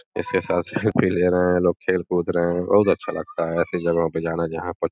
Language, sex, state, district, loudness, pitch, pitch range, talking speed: Hindi, male, Uttar Pradesh, Gorakhpur, -22 LUFS, 90 Hz, 85-90 Hz, 270 wpm